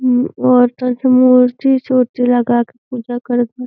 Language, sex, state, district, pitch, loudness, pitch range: Hindi, female, Uttar Pradesh, Deoria, 250 Hz, -14 LUFS, 245-255 Hz